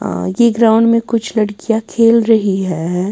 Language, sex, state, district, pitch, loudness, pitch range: Hindi, female, Bihar, West Champaran, 220 Hz, -13 LUFS, 190-230 Hz